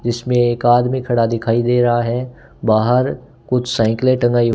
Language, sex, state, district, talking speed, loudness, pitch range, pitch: Hindi, male, Rajasthan, Bikaner, 160 wpm, -16 LUFS, 120-125 Hz, 120 Hz